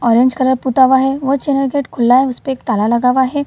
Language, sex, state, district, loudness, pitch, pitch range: Hindi, female, Bihar, Gaya, -14 LUFS, 260 Hz, 250-270 Hz